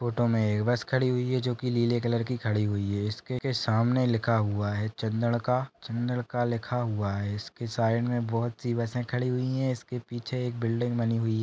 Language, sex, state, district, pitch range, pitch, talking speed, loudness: Hindi, male, Maharashtra, Solapur, 115-125 Hz, 120 Hz, 220 wpm, -29 LUFS